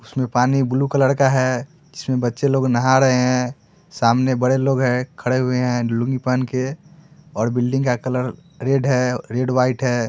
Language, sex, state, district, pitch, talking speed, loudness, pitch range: Hindi, male, Bihar, Muzaffarpur, 130 Hz, 185 wpm, -19 LUFS, 125-135 Hz